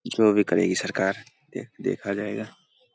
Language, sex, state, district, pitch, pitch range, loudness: Hindi, male, Bihar, Saharsa, 105 Hz, 100-110 Hz, -25 LUFS